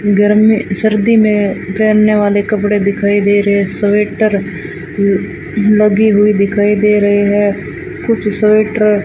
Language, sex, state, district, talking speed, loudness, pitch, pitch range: Hindi, female, Rajasthan, Bikaner, 140 wpm, -12 LUFS, 210 Hz, 205-215 Hz